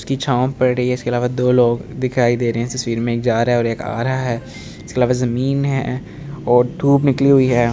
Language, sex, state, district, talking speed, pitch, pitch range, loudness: Hindi, male, Delhi, New Delhi, 265 wpm, 125 Hz, 120-130 Hz, -17 LUFS